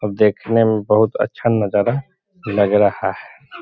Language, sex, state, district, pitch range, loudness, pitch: Hindi, male, Bihar, Sitamarhi, 105-115 Hz, -17 LUFS, 105 Hz